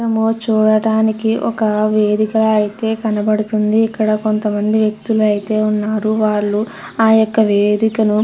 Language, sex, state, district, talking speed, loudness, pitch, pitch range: Telugu, female, Andhra Pradesh, Krishna, 115 wpm, -15 LUFS, 215 Hz, 210-220 Hz